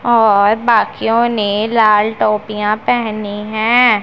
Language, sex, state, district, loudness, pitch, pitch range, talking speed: Hindi, female, Punjab, Pathankot, -14 LUFS, 215 Hz, 210-230 Hz, 105 wpm